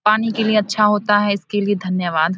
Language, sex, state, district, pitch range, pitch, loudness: Hindi, female, Bihar, Samastipur, 185-215 Hz, 205 Hz, -18 LUFS